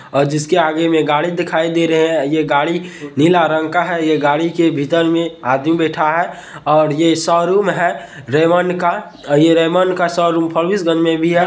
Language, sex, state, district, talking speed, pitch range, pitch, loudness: Hindi, male, Bihar, Purnia, 195 wpm, 155-175 Hz, 165 Hz, -15 LUFS